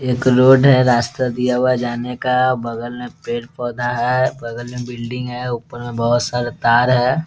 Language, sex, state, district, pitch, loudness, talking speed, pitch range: Hindi, male, Bihar, Muzaffarpur, 125 Hz, -17 LUFS, 200 wpm, 120-125 Hz